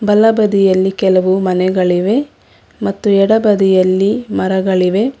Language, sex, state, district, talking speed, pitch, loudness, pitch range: Kannada, female, Karnataka, Bangalore, 70 wpm, 195 Hz, -13 LUFS, 185-210 Hz